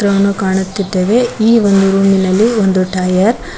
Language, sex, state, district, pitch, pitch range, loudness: Kannada, female, Karnataka, Koppal, 195 Hz, 190-215 Hz, -12 LUFS